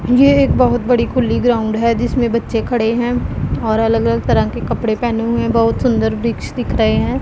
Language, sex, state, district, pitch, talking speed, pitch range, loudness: Hindi, female, Punjab, Pathankot, 230 Hz, 200 wpm, 225-240 Hz, -15 LUFS